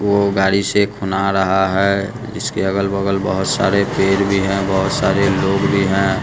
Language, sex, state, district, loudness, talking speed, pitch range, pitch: Hindi, male, Bihar, West Champaran, -16 LUFS, 175 wpm, 95-100 Hz, 100 Hz